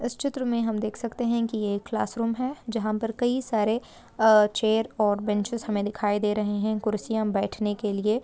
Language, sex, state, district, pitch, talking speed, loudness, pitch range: Hindi, female, Goa, North and South Goa, 220 Hz, 195 wpm, -26 LUFS, 210-235 Hz